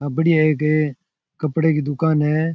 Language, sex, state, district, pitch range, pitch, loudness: Rajasthani, male, Rajasthan, Churu, 150-160 Hz, 155 Hz, -19 LUFS